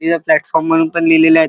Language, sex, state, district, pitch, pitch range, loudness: Marathi, male, Maharashtra, Chandrapur, 165 Hz, 160-170 Hz, -13 LUFS